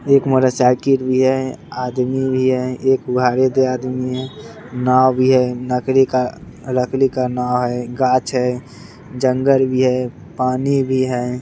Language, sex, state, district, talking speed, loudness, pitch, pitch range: Angika, male, Bihar, Begusarai, 170 wpm, -17 LUFS, 130 Hz, 125-130 Hz